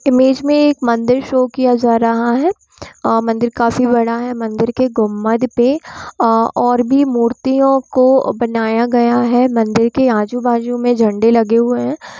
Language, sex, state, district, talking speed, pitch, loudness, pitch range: Hindi, female, Bihar, Gopalganj, 155 wpm, 240 Hz, -14 LUFS, 230-255 Hz